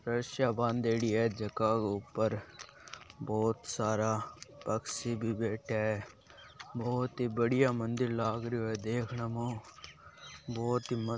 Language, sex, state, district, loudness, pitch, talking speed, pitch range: Marwari, male, Rajasthan, Nagaur, -34 LUFS, 115 Hz, 140 wpm, 110-120 Hz